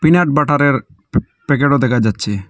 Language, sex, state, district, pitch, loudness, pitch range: Bengali, male, Assam, Hailakandi, 140 Hz, -15 LUFS, 105-145 Hz